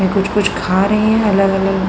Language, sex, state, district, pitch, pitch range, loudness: Hindi, female, Uttar Pradesh, Hamirpur, 195 Hz, 190-205 Hz, -14 LUFS